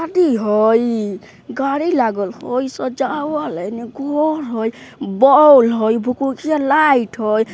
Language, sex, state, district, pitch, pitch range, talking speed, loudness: Bajjika, female, Bihar, Vaishali, 255 Hz, 225-295 Hz, 110 wpm, -16 LUFS